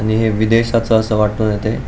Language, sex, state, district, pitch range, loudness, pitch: Marathi, male, Goa, North and South Goa, 110-115 Hz, -15 LUFS, 110 Hz